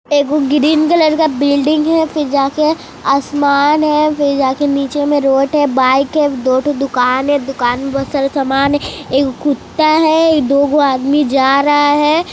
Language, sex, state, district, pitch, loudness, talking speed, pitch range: Hindi, female, Bihar, Kishanganj, 285 Hz, -13 LUFS, 175 wpm, 275-300 Hz